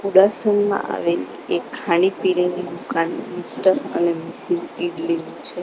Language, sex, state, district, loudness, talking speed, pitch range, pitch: Gujarati, female, Gujarat, Gandhinagar, -21 LUFS, 115 wpm, 175-220 Hz, 190 Hz